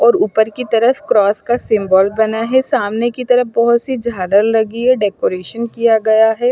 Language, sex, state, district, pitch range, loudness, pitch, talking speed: Hindi, male, Punjab, Fazilka, 215-245 Hz, -14 LUFS, 230 Hz, 195 wpm